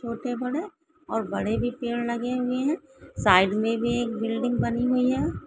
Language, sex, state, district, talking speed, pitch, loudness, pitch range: Hindi, female, Maharashtra, Solapur, 175 wpm, 245 Hz, -26 LUFS, 235-260 Hz